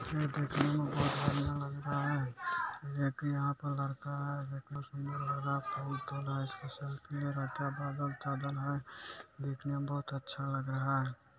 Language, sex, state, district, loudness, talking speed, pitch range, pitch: Hindi, male, Bihar, Araria, -37 LUFS, 190 wpm, 140-145 Hz, 140 Hz